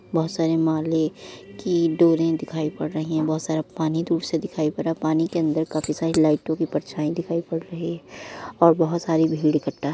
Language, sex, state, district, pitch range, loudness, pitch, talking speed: Hindi, female, Uttar Pradesh, Muzaffarnagar, 155-165 Hz, -23 LUFS, 160 Hz, 215 wpm